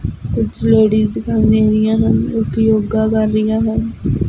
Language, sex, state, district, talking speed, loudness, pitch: Punjabi, female, Punjab, Fazilka, 155 wpm, -15 LUFS, 215 Hz